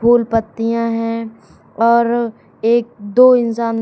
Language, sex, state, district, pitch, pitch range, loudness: Hindi, female, Uttar Pradesh, Shamli, 230 Hz, 225-235 Hz, -15 LUFS